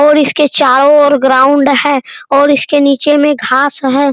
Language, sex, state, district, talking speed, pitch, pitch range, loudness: Hindi, male, Bihar, Araria, 190 wpm, 280 Hz, 270-290 Hz, -9 LUFS